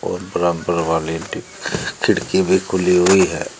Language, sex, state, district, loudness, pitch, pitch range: Hindi, male, Uttar Pradesh, Shamli, -18 LUFS, 90 Hz, 80-95 Hz